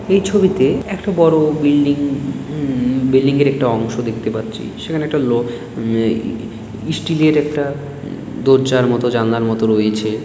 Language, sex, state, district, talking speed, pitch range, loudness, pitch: Bengali, male, West Bengal, Dakshin Dinajpur, 160 wpm, 115-150 Hz, -16 LUFS, 130 Hz